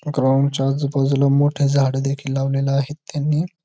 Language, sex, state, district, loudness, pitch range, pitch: Marathi, male, Maharashtra, Dhule, -19 LUFS, 135-145 Hz, 140 Hz